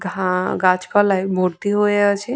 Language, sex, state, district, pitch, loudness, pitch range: Bengali, female, West Bengal, Purulia, 195 Hz, -18 LUFS, 185-205 Hz